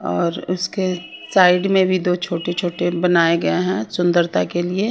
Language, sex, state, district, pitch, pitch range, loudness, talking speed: Hindi, female, Haryana, Rohtak, 180 Hz, 175-185 Hz, -18 LUFS, 170 wpm